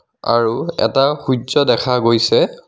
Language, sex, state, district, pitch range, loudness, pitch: Assamese, male, Assam, Kamrup Metropolitan, 115-130 Hz, -16 LUFS, 125 Hz